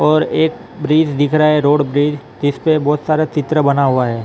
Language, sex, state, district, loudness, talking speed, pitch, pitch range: Hindi, male, Maharashtra, Mumbai Suburban, -15 LUFS, 240 wpm, 150 Hz, 145-155 Hz